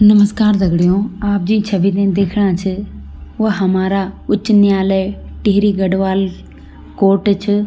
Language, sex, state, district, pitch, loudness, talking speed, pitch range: Garhwali, female, Uttarakhand, Tehri Garhwal, 195 Hz, -15 LUFS, 125 wpm, 190-205 Hz